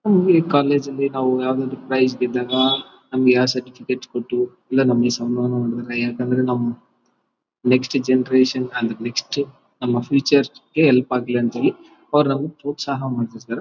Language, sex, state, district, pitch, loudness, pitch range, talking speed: Kannada, male, Karnataka, Bellary, 130 Hz, -20 LUFS, 125-140 Hz, 130 wpm